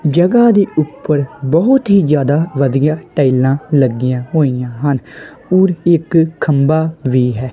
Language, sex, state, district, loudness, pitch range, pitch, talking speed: Punjabi, male, Punjab, Kapurthala, -13 LUFS, 135-170 Hz, 150 Hz, 125 wpm